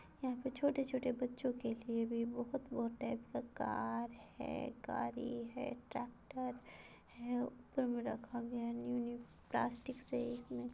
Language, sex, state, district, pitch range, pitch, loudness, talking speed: Hindi, female, Bihar, Madhepura, 235-255 Hz, 245 Hz, -42 LUFS, 150 wpm